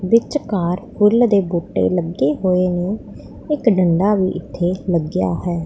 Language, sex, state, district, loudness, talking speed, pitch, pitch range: Punjabi, female, Punjab, Pathankot, -18 LUFS, 140 wpm, 180 Hz, 175-205 Hz